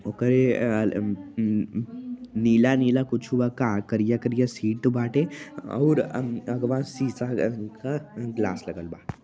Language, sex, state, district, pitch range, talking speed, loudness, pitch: Bhojpuri, male, Uttar Pradesh, Varanasi, 110-130 Hz, 130 wpm, -25 LUFS, 120 Hz